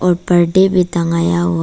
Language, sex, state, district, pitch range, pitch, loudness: Hindi, female, Arunachal Pradesh, Papum Pare, 170-180 Hz, 175 Hz, -14 LUFS